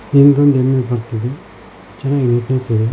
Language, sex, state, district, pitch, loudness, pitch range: Kannada, male, Karnataka, Koppal, 130 Hz, -15 LUFS, 120-140 Hz